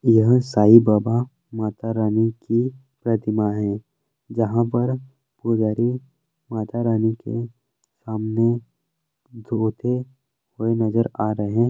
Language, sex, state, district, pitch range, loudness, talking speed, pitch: Hindi, male, Uttarakhand, Uttarkashi, 110-125 Hz, -21 LUFS, 110 wpm, 115 Hz